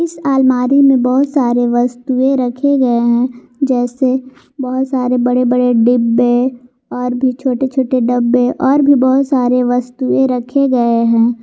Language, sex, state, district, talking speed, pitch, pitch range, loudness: Hindi, female, Jharkhand, Garhwa, 145 wpm, 250 Hz, 245-265 Hz, -13 LUFS